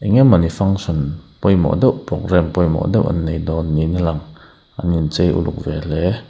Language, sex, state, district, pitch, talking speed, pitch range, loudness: Mizo, male, Mizoram, Aizawl, 85 Hz, 160 wpm, 80-90 Hz, -17 LUFS